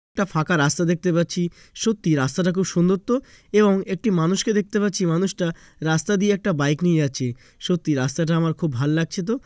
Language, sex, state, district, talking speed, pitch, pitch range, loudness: Bengali, male, West Bengal, Jalpaiguri, 185 wpm, 175 Hz, 160-200 Hz, -22 LUFS